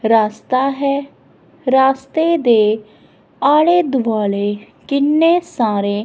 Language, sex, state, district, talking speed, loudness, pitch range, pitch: Punjabi, female, Punjab, Kapurthala, 80 wpm, -16 LUFS, 215-290 Hz, 265 Hz